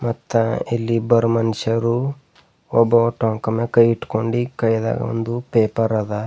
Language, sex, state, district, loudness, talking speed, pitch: Kannada, male, Karnataka, Bidar, -19 LUFS, 125 wpm, 115 Hz